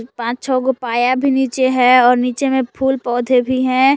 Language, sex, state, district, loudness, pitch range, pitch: Hindi, female, Jharkhand, Palamu, -15 LUFS, 245-265 Hz, 255 Hz